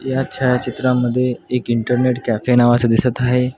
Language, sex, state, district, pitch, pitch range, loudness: Marathi, male, Maharashtra, Washim, 125 Hz, 120-125 Hz, -17 LUFS